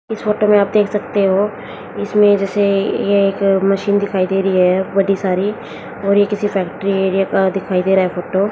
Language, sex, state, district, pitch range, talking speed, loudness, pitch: Hindi, female, Haryana, Jhajjar, 190-205 Hz, 210 wpm, -16 LUFS, 195 Hz